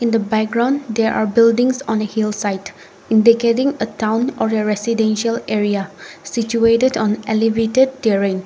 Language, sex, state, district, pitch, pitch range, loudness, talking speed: English, female, Nagaland, Kohima, 225 Hz, 215-230 Hz, -17 LUFS, 140 wpm